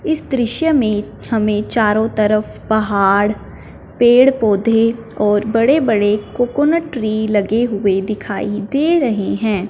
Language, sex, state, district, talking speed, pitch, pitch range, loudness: Hindi, female, Punjab, Fazilka, 125 wpm, 220 Hz, 210-245 Hz, -16 LUFS